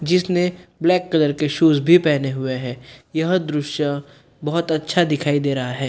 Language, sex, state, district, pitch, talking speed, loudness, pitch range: Hindi, male, Bihar, Gopalganj, 150 Hz, 175 wpm, -19 LUFS, 140-170 Hz